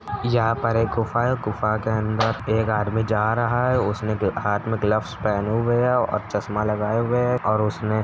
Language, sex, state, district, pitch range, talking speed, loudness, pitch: Hindi, male, Uttar Pradesh, Etah, 105-120 Hz, 240 wpm, -22 LUFS, 110 Hz